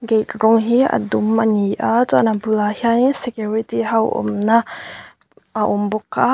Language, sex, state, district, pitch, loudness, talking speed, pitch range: Mizo, female, Mizoram, Aizawl, 225 Hz, -17 LUFS, 170 wpm, 215-235 Hz